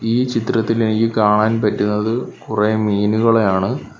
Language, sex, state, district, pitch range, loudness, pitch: Malayalam, male, Kerala, Kollam, 105-115 Hz, -17 LUFS, 110 Hz